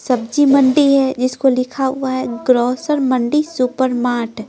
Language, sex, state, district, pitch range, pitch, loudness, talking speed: Hindi, female, Bihar, Patna, 250-275 Hz, 260 Hz, -16 LUFS, 105 wpm